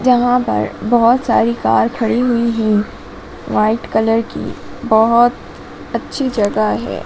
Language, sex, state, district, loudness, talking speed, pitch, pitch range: Hindi, female, Madhya Pradesh, Dhar, -15 LUFS, 125 wpm, 235 Hz, 220-245 Hz